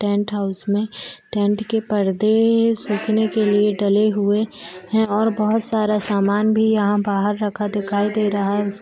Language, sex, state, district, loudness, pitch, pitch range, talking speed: Hindi, female, Bihar, Gopalganj, -19 LUFS, 210 Hz, 205-215 Hz, 175 wpm